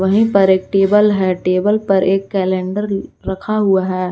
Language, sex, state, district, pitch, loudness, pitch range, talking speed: Hindi, female, Jharkhand, Garhwa, 195 Hz, -15 LUFS, 185-205 Hz, 175 wpm